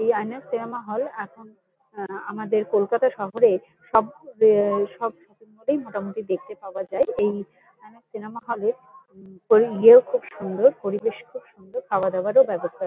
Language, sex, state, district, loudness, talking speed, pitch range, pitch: Bengali, female, West Bengal, Kolkata, -22 LUFS, 155 wpm, 200-255 Hz, 220 Hz